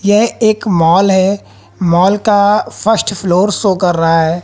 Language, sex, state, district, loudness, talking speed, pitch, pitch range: Hindi, female, Haryana, Jhajjar, -12 LUFS, 160 wpm, 195 Hz, 175-210 Hz